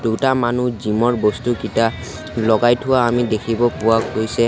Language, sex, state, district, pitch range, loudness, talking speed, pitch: Assamese, male, Assam, Sonitpur, 110-120 Hz, -18 LUFS, 145 wpm, 115 Hz